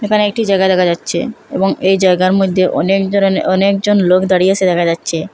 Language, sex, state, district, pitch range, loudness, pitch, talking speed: Bengali, female, Assam, Hailakandi, 185-195 Hz, -13 LUFS, 190 Hz, 190 wpm